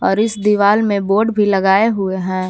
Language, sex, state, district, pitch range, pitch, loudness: Hindi, female, Jharkhand, Palamu, 195-210 Hz, 200 Hz, -15 LUFS